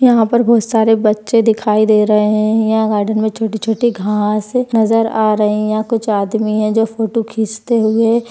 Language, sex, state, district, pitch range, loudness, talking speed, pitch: Hindi, female, Maharashtra, Pune, 215-225 Hz, -14 LUFS, 190 wpm, 220 Hz